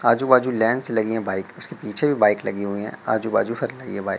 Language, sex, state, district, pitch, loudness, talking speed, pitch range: Hindi, male, Madhya Pradesh, Katni, 110 Hz, -22 LUFS, 285 wpm, 105-125 Hz